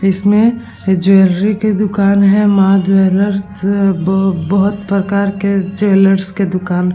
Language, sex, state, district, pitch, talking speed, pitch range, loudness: Hindi, female, Bihar, Vaishali, 195 Hz, 140 wpm, 190-200 Hz, -13 LUFS